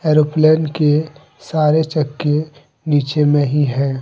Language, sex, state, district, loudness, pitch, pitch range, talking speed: Hindi, male, Jharkhand, Deoghar, -16 LUFS, 150 Hz, 145-155 Hz, 120 wpm